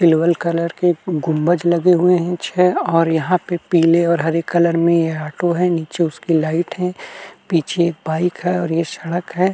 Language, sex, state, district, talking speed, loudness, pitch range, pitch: Hindi, male, Uttar Pradesh, Jalaun, 195 wpm, -17 LUFS, 165-175 Hz, 170 Hz